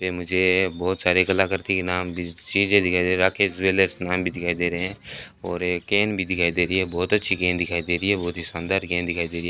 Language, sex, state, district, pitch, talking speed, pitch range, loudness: Hindi, male, Rajasthan, Bikaner, 90 Hz, 265 wpm, 85-95 Hz, -22 LUFS